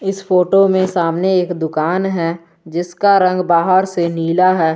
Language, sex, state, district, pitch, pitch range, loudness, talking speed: Hindi, male, Jharkhand, Garhwa, 180 Hz, 170-185 Hz, -15 LUFS, 165 wpm